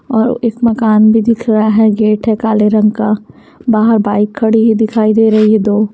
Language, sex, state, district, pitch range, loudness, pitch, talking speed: Hindi, female, Haryana, Charkhi Dadri, 215-225 Hz, -11 LUFS, 220 Hz, 210 wpm